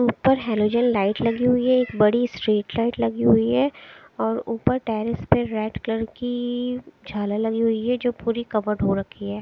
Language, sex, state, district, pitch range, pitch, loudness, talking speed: Hindi, female, Odisha, Sambalpur, 215-245 Hz, 230 Hz, -22 LUFS, 190 wpm